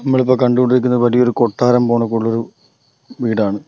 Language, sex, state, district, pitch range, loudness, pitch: Malayalam, male, Kerala, Kollam, 115-125 Hz, -15 LUFS, 120 Hz